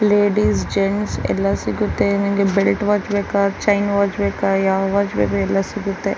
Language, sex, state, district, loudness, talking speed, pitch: Kannada, female, Karnataka, Chamarajanagar, -18 LUFS, 155 wpm, 195 Hz